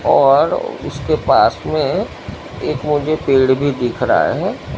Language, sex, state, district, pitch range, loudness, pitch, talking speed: Hindi, male, Gujarat, Gandhinagar, 130-150 Hz, -16 LUFS, 140 Hz, 140 wpm